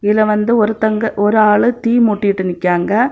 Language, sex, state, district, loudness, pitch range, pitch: Tamil, female, Tamil Nadu, Kanyakumari, -14 LUFS, 205-225 Hz, 215 Hz